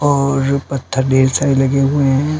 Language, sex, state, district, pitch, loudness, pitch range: Hindi, male, Uttar Pradesh, Varanasi, 135 Hz, -15 LUFS, 135-140 Hz